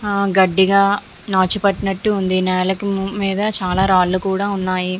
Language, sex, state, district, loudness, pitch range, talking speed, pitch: Telugu, female, Andhra Pradesh, Visakhapatnam, -17 LUFS, 185-200 Hz, 130 wpm, 195 Hz